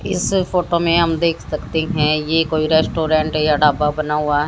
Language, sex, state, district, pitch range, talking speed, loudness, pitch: Hindi, female, Haryana, Jhajjar, 150-165 Hz, 200 wpm, -17 LUFS, 155 Hz